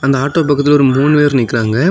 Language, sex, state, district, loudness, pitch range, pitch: Tamil, male, Tamil Nadu, Kanyakumari, -12 LUFS, 130-145 Hz, 140 Hz